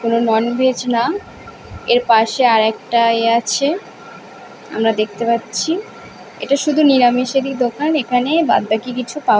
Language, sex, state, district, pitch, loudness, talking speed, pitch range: Bengali, female, West Bengal, Paschim Medinipur, 245 Hz, -16 LUFS, 135 wpm, 230-275 Hz